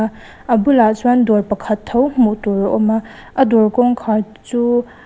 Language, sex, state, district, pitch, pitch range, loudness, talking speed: Mizo, female, Mizoram, Aizawl, 230 Hz, 215-245 Hz, -15 LUFS, 180 wpm